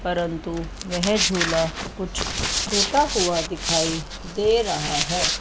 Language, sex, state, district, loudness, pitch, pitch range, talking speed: Hindi, female, Chandigarh, Chandigarh, -22 LUFS, 175 Hz, 165-205 Hz, 110 wpm